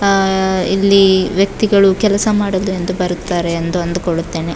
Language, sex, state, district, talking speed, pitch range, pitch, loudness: Kannada, female, Karnataka, Dakshina Kannada, 105 wpm, 175-195 Hz, 190 Hz, -14 LUFS